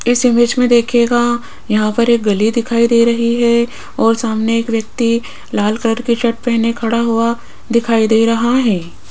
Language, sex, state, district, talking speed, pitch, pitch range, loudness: Hindi, female, Rajasthan, Jaipur, 180 wpm, 235 Hz, 225-235 Hz, -14 LUFS